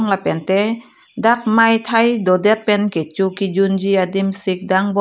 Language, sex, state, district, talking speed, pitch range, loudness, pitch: Karbi, female, Assam, Karbi Anglong, 180 wpm, 190-220 Hz, -16 LUFS, 200 Hz